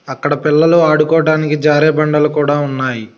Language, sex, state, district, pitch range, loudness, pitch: Telugu, male, Telangana, Hyderabad, 145-155 Hz, -13 LUFS, 150 Hz